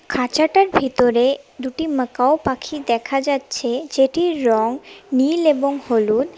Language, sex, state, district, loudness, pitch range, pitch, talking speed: Bengali, female, West Bengal, Cooch Behar, -19 LUFS, 250-310 Hz, 270 Hz, 115 wpm